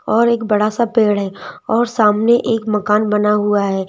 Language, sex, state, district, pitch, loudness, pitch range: Hindi, female, Madhya Pradesh, Bhopal, 215 Hz, -15 LUFS, 210-230 Hz